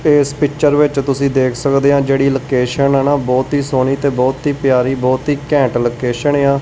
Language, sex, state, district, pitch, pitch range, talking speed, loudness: Punjabi, male, Punjab, Kapurthala, 140 Hz, 130-145 Hz, 225 wpm, -14 LUFS